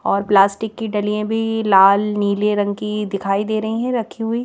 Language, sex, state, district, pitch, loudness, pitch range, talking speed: Hindi, female, Madhya Pradesh, Bhopal, 210 Hz, -18 LUFS, 200-220 Hz, 200 wpm